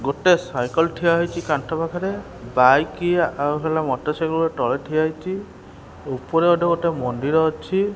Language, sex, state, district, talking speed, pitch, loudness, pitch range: Odia, male, Odisha, Khordha, 135 wpm, 160 Hz, -21 LUFS, 140-170 Hz